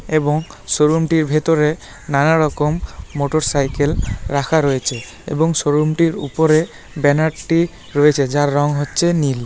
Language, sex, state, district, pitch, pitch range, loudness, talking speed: Bengali, male, West Bengal, Malda, 150 Hz, 145-160 Hz, -17 LUFS, 125 wpm